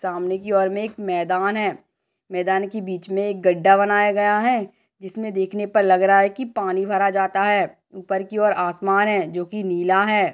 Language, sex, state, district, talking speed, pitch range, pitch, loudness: Hindi, female, Rajasthan, Nagaur, 210 wpm, 190-205 Hz, 195 Hz, -20 LUFS